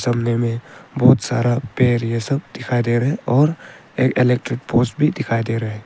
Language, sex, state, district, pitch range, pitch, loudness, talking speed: Hindi, male, Arunachal Pradesh, Longding, 115-130 Hz, 120 Hz, -19 LUFS, 185 wpm